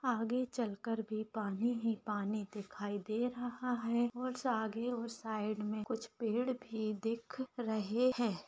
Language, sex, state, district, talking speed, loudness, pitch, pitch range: Hindi, female, Chhattisgarh, Sarguja, 155 wpm, -38 LUFS, 230 Hz, 215-245 Hz